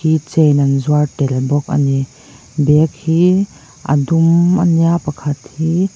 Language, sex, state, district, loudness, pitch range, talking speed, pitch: Mizo, female, Mizoram, Aizawl, -14 LUFS, 140-165 Hz, 150 wpm, 150 Hz